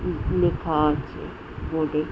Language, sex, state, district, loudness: Bengali, female, West Bengal, Jhargram, -24 LUFS